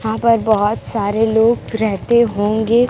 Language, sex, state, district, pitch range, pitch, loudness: Hindi, female, Bihar, Kaimur, 215-230 Hz, 220 Hz, -16 LUFS